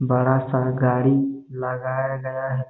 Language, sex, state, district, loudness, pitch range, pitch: Hindi, male, Chhattisgarh, Bastar, -22 LUFS, 130-135 Hz, 130 Hz